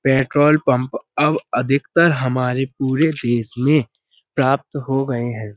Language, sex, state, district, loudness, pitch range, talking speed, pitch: Hindi, male, Uttar Pradesh, Budaun, -18 LUFS, 125-140 Hz, 130 wpm, 135 Hz